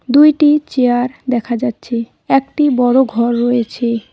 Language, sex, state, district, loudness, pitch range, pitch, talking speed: Bengali, female, West Bengal, Cooch Behar, -14 LUFS, 235-270 Hz, 245 Hz, 115 wpm